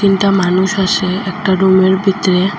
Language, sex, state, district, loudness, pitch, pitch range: Bengali, female, Assam, Hailakandi, -13 LUFS, 190 Hz, 185-195 Hz